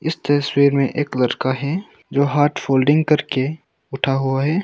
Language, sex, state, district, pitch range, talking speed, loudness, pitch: Hindi, male, Arunachal Pradesh, Longding, 135-150 Hz, 155 wpm, -19 LUFS, 140 Hz